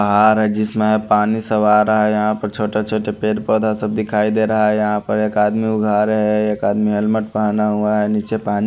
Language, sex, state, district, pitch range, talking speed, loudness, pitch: Hindi, male, Haryana, Charkhi Dadri, 105-110 Hz, 250 wpm, -17 LUFS, 105 Hz